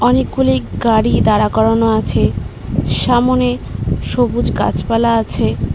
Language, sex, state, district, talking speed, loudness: Bengali, female, West Bengal, Cooch Behar, 95 wpm, -15 LUFS